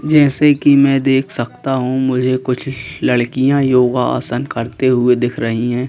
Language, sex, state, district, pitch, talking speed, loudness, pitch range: Hindi, male, Madhya Pradesh, Bhopal, 130 Hz, 165 wpm, -15 LUFS, 125-135 Hz